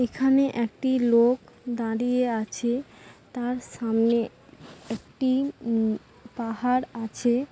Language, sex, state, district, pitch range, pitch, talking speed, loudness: Bengali, female, West Bengal, Jhargram, 230-255 Hz, 240 Hz, 90 wpm, -26 LUFS